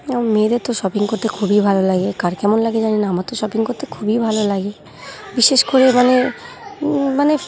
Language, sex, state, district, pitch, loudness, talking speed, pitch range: Bengali, female, West Bengal, Jhargram, 225 Hz, -17 LUFS, 185 wpm, 205-255 Hz